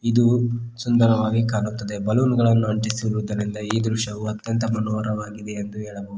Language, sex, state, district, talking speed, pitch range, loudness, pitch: Kannada, male, Karnataka, Koppal, 115 wpm, 105-115 Hz, -22 LUFS, 110 Hz